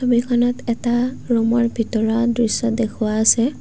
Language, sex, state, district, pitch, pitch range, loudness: Assamese, female, Assam, Kamrup Metropolitan, 235 Hz, 225-240 Hz, -19 LUFS